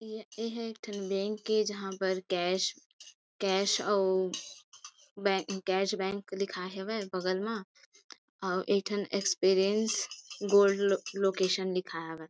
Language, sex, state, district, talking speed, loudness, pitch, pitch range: Chhattisgarhi, female, Chhattisgarh, Kabirdham, 115 wpm, -31 LUFS, 195 Hz, 190-210 Hz